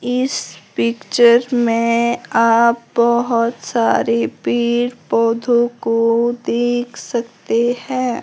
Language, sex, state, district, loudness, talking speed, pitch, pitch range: Hindi, female, Himachal Pradesh, Shimla, -17 LUFS, 85 wpm, 235 Hz, 230-240 Hz